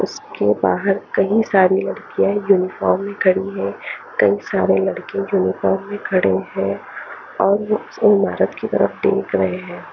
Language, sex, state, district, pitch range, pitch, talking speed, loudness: Hindi, female, Chandigarh, Chandigarh, 190-205 Hz, 195 Hz, 150 wpm, -18 LUFS